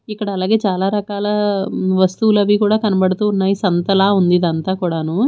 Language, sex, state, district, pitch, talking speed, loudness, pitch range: Telugu, female, Andhra Pradesh, Manyam, 195 Hz, 135 wpm, -16 LUFS, 185-210 Hz